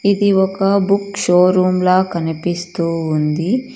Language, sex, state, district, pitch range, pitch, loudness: Telugu, female, Karnataka, Bangalore, 175-200 Hz, 185 Hz, -16 LUFS